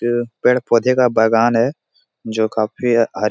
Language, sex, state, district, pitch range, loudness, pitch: Hindi, male, Bihar, Supaul, 110-120 Hz, -16 LUFS, 115 Hz